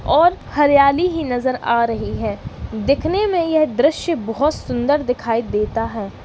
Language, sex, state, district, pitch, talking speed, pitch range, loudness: Hindi, female, Uttar Pradesh, Varanasi, 280 Hz, 155 wpm, 230-315 Hz, -18 LUFS